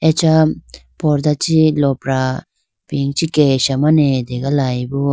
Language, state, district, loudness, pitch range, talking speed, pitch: Idu Mishmi, Arunachal Pradesh, Lower Dibang Valley, -16 LUFS, 135-155 Hz, 80 wpm, 140 Hz